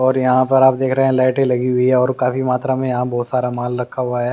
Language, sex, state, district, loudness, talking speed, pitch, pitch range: Hindi, male, Haryana, Jhajjar, -17 LUFS, 305 wpm, 130 Hz, 125-130 Hz